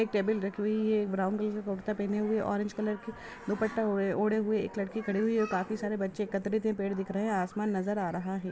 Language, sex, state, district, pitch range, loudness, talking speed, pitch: Bhojpuri, female, Bihar, Saran, 195-215 Hz, -31 LUFS, 265 wpm, 210 Hz